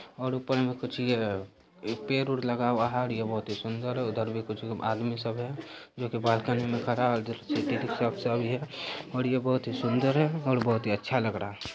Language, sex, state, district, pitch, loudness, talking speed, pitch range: Hindi, male, Bihar, Saharsa, 120 Hz, -30 LUFS, 195 wpm, 110-130 Hz